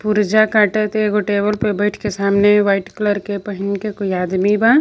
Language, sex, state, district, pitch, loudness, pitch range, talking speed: Bhojpuri, female, Jharkhand, Palamu, 205 Hz, -17 LUFS, 200-210 Hz, 210 wpm